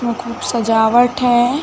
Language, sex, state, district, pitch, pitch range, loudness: Hindi, female, Chhattisgarh, Bilaspur, 240 Hz, 235-245 Hz, -15 LUFS